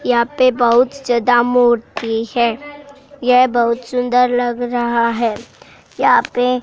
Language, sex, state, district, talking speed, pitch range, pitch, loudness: Hindi, female, Haryana, Jhajjar, 125 wpm, 235-250 Hz, 245 Hz, -15 LUFS